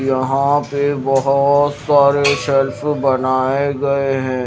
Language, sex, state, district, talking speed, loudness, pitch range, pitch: Hindi, male, Himachal Pradesh, Shimla, 110 wpm, -16 LUFS, 135-140 Hz, 140 Hz